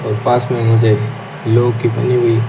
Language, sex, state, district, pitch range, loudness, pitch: Hindi, male, Rajasthan, Bikaner, 115-125 Hz, -15 LUFS, 115 Hz